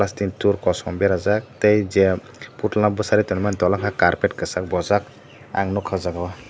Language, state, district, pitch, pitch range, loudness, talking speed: Kokborok, Tripura, Dhalai, 100 Hz, 95-105 Hz, -21 LUFS, 175 wpm